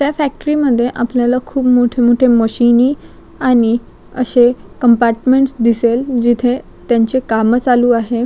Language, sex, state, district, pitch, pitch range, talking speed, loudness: Marathi, female, Maharashtra, Chandrapur, 245 Hz, 235-255 Hz, 125 wpm, -13 LUFS